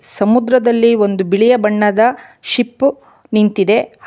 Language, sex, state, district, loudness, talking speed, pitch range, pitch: Kannada, female, Karnataka, Bangalore, -13 LUFS, 90 wpm, 210-245 Hz, 225 Hz